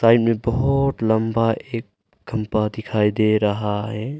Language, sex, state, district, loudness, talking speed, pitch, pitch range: Hindi, male, Arunachal Pradesh, Longding, -21 LUFS, 145 wpm, 110 Hz, 110-115 Hz